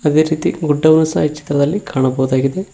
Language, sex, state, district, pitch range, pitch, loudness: Kannada, male, Karnataka, Koppal, 135-160 Hz, 150 Hz, -15 LUFS